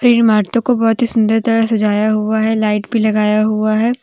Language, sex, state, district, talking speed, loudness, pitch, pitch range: Hindi, female, Jharkhand, Deoghar, 225 wpm, -14 LUFS, 220 Hz, 215-230 Hz